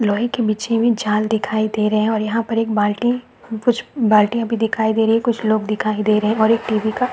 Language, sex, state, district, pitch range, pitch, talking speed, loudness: Hindi, male, Chhattisgarh, Balrampur, 215-230 Hz, 220 Hz, 270 wpm, -18 LUFS